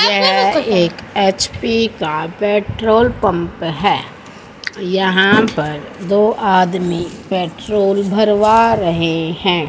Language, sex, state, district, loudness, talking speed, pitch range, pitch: Hindi, female, Haryana, Rohtak, -15 LUFS, 95 wpm, 170-210 Hz, 190 Hz